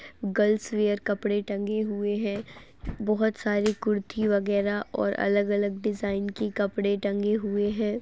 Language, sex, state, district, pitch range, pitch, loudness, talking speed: Hindi, female, Uttar Pradesh, Etah, 205-215 Hz, 205 Hz, -27 LUFS, 135 wpm